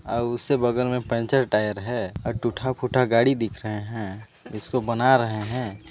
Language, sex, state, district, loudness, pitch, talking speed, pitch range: Hindi, male, Chhattisgarh, Sarguja, -24 LUFS, 115 Hz, 185 wpm, 105-125 Hz